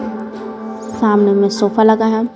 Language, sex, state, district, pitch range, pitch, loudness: Hindi, female, Bihar, Patna, 210-225 Hz, 220 Hz, -14 LUFS